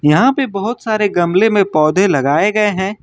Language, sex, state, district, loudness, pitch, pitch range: Hindi, male, Uttar Pradesh, Lucknow, -14 LUFS, 200 Hz, 185-220 Hz